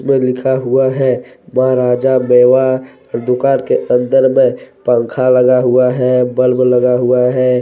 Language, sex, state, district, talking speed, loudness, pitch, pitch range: Hindi, male, Jharkhand, Deoghar, 150 wpm, -12 LUFS, 125 Hz, 125-130 Hz